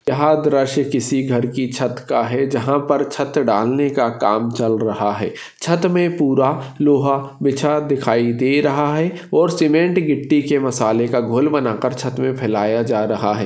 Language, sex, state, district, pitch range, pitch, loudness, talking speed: Hindi, male, Maharashtra, Solapur, 120-145 Hz, 135 Hz, -18 LUFS, 185 wpm